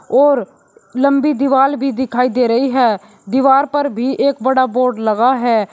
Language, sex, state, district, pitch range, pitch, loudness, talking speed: Hindi, male, Uttar Pradesh, Shamli, 235-275 Hz, 260 Hz, -15 LUFS, 165 wpm